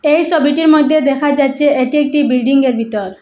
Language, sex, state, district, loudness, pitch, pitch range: Bengali, female, Assam, Hailakandi, -12 LUFS, 290 Hz, 265-300 Hz